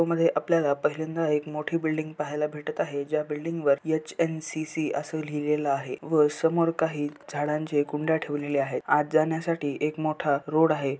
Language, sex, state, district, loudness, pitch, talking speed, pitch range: Marathi, male, Maharashtra, Solapur, -27 LUFS, 155 Hz, 160 wpm, 145-160 Hz